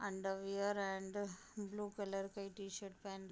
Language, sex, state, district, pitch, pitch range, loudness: Hindi, female, Bihar, Gopalganj, 195 Hz, 195-205 Hz, -44 LUFS